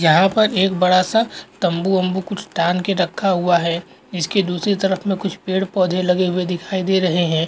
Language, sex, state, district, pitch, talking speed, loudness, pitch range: Hindi, male, Uttarakhand, Uttarkashi, 185 Hz, 200 wpm, -18 LUFS, 180-195 Hz